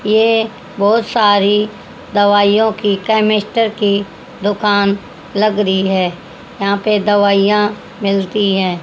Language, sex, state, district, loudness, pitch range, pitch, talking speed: Hindi, female, Haryana, Jhajjar, -14 LUFS, 200-215 Hz, 205 Hz, 110 wpm